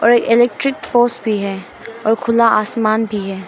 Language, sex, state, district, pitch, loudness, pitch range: Hindi, female, Arunachal Pradesh, Papum Pare, 230 Hz, -16 LUFS, 215-235 Hz